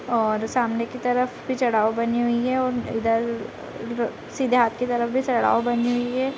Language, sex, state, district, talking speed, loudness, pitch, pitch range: Hindi, female, Bihar, Gopalganj, 200 wpm, -23 LUFS, 240 Hz, 230-250 Hz